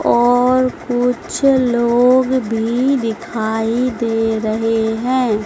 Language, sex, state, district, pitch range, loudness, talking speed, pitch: Hindi, female, Madhya Pradesh, Dhar, 225-255 Hz, -16 LUFS, 90 wpm, 240 Hz